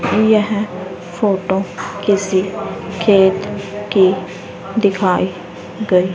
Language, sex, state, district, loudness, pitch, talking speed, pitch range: Hindi, female, Haryana, Rohtak, -17 LUFS, 190 Hz, 70 wpm, 180-205 Hz